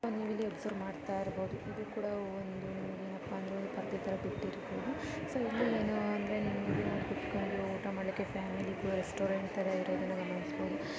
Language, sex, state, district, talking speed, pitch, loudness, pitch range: Kannada, female, Karnataka, Dharwad, 145 wpm, 195 Hz, -37 LUFS, 190-210 Hz